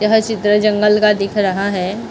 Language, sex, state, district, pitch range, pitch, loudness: Hindi, female, Maharashtra, Mumbai Suburban, 200-215 Hz, 210 Hz, -15 LUFS